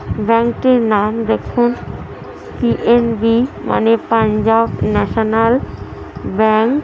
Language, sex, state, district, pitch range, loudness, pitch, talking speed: Bengali, female, West Bengal, Jhargram, 220-235 Hz, -15 LUFS, 230 Hz, 80 wpm